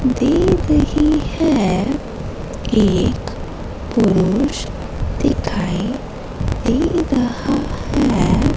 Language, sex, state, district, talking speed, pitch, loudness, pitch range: Hindi, female, Madhya Pradesh, Katni, 65 wpm, 260 Hz, -18 LUFS, 235-305 Hz